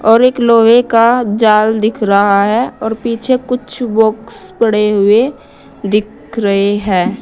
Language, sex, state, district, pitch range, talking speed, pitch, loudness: Hindi, female, Uttar Pradesh, Saharanpur, 210-235 Hz, 140 wpm, 225 Hz, -12 LUFS